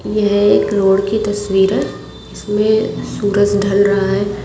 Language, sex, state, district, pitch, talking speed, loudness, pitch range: Hindi, female, Delhi, New Delhi, 205 Hz, 150 wpm, -15 LUFS, 200-210 Hz